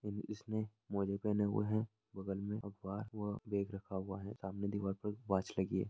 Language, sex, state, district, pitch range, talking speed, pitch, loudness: Hindi, male, Bihar, Jamui, 95-105 Hz, 205 wpm, 100 Hz, -41 LUFS